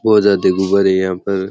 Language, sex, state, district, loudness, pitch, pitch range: Rajasthani, male, Rajasthan, Churu, -14 LUFS, 95 Hz, 95-100 Hz